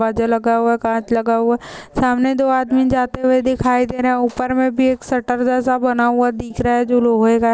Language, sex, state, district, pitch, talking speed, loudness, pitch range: Hindi, female, Maharashtra, Nagpur, 245 Hz, 240 wpm, -17 LUFS, 235-255 Hz